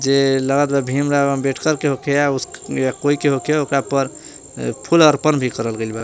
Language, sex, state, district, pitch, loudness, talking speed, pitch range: Bhojpuri, male, Jharkhand, Palamu, 140 Hz, -18 LUFS, 190 wpm, 130-145 Hz